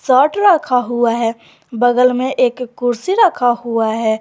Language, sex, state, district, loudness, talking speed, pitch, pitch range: Hindi, female, Jharkhand, Garhwa, -15 LUFS, 155 wpm, 245 Hz, 235-260 Hz